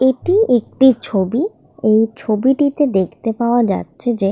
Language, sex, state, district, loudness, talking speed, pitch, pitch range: Bengali, female, West Bengal, Malda, -16 LUFS, 125 wpm, 240 Hz, 215-265 Hz